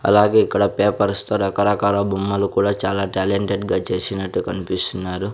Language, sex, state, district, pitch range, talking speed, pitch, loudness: Telugu, male, Andhra Pradesh, Sri Satya Sai, 95-100 Hz, 135 wpm, 100 Hz, -19 LUFS